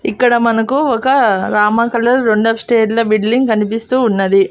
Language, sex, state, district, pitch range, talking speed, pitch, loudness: Telugu, female, Andhra Pradesh, Annamaya, 215-245 Hz, 135 wpm, 230 Hz, -13 LUFS